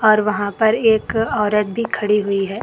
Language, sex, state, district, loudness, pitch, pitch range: Hindi, female, Karnataka, Koppal, -18 LUFS, 210 Hz, 205-220 Hz